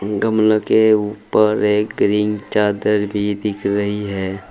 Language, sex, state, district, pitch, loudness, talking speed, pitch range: Hindi, male, Uttar Pradesh, Saharanpur, 105 Hz, -17 LUFS, 135 wpm, 100-105 Hz